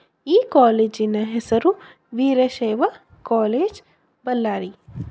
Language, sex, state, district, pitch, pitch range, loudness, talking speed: Kannada, female, Karnataka, Bellary, 230 Hz, 215-260 Hz, -20 LUFS, 70 wpm